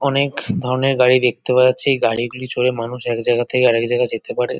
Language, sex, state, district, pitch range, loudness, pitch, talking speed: Bengali, male, West Bengal, North 24 Parganas, 120-135 Hz, -17 LUFS, 125 Hz, 195 wpm